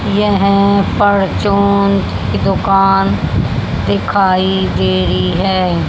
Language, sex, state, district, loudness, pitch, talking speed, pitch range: Hindi, male, Haryana, Jhajjar, -13 LUFS, 195 Hz, 80 wpm, 175-200 Hz